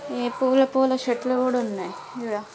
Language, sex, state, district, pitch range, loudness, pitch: Telugu, female, Andhra Pradesh, Guntur, 235-260 Hz, -23 LUFS, 250 Hz